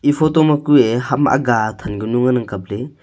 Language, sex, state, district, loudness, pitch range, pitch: Wancho, male, Arunachal Pradesh, Longding, -16 LUFS, 110-145 Hz, 125 Hz